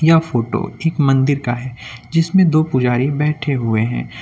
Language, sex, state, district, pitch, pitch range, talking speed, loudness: Hindi, male, Uttar Pradesh, Lucknow, 135 Hz, 120-155 Hz, 170 wpm, -17 LUFS